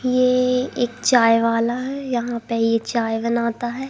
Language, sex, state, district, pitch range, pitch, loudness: Hindi, female, Madhya Pradesh, Katni, 230-250 Hz, 240 Hz, -20 LUFS